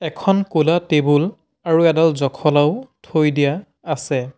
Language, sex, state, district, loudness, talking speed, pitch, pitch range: Assamese, male, Assam, Sonitpur, -18 LUFS, 125 wpm, 155 Hz, 145-165 Hz